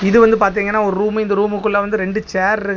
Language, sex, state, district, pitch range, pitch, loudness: Tamil, male, Tamil Nadu, Kanyakumari, 200-215 Hz, 205 Hz, -16 LUFS